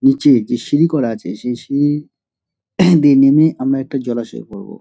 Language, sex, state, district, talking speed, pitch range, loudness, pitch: Bengali, male, West Bengal, Dakshin Dinajpur, 160 wpm, 125-160 Hz, -15 LUFS, 140 Hz